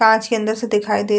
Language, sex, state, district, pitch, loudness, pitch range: Hindi, female, Uttar Pradesh, Etah, 220 Hz, -19 LUFS, 210-225 Hz